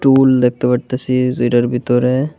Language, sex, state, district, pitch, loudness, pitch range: Bengali, male, Tripura, West Tripura, 125 Hz, -15 LUFS, 125-130 Hz